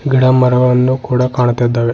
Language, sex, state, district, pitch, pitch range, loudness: Kannada, male, Karnataka, Bidar, 125 Hz, 125-130 Hz, -12 LUFS